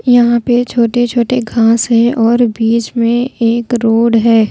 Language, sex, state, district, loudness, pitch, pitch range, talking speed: Hindi, female, Bihar, Patna, -12 LUFS, 235 Hz, 230-240 Hz, 160 wpm